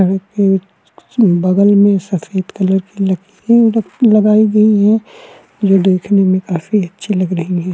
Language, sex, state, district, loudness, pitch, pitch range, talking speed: Hindi, male, Uttarakhand, Tehri Garhwal, -13 LUFS, 195 Hz, 185-215 Hz, 155 wpm